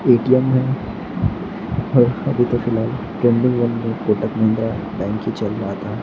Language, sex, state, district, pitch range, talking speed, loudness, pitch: Hindi, male, Maharashtra, Gondia, 110-125 Hz, 160 wpm, -19 LUFS, 115 Hz